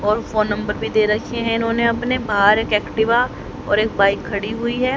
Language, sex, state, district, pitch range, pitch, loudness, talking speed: Hindi, female, Haryana, Rohtak, 210-235 Hz, 220 Hz, -18 LUFS, 215 wpm